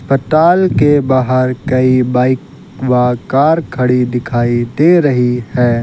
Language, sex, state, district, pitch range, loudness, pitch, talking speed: Hindi, male, Uttar Pradesh, Lucknow, 125-140 Hz, -12 LUFS, 130 Hz, 125 wpm